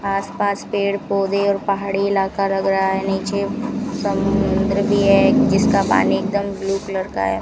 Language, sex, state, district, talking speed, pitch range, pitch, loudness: Hindi, female, Rajasthan, Bikaner, 160 wpm, 195-200 Hz, 200 Hz, -19 LUFS